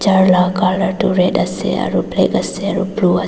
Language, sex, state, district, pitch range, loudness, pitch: Nagamese, female, Nagaland, Dimapur, 180-195 Hz, -15 LUFS, 190 Hz